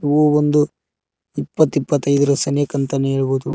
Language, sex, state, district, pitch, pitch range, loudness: Kannada, male, Karnataka, Koppal, 145 Hz, 135-150 Hz, -18 LUFS